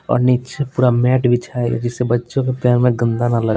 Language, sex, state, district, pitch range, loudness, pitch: Hindi, male, Bihar, Patna, 120-125 Hz, -17 LUFS, 125 Hz